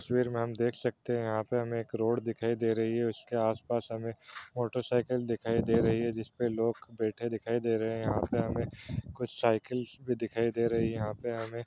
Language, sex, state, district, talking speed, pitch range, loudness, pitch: Hindi, male, Bihar, East Champaran, 230 wpm, 115-120 Hz, -32 LUFS, 115 Hz